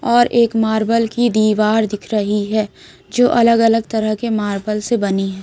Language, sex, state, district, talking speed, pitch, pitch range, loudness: Hindi, female, Bihar, Kaimur, 190 wpm, 220 Hz, 210-230 Hz, -16 LUFS